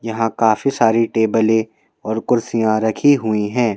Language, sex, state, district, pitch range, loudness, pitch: Hindi, male, Madhya Pradesh, Bhopal, 110-115 Hz, -17 LUFS, 110 Hz